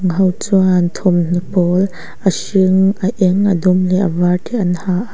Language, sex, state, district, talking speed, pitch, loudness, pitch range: Mizo, female, Mizoram, Aizawl, 210 wpm, 185 Hz, -15 LUFS, 180-190 Hz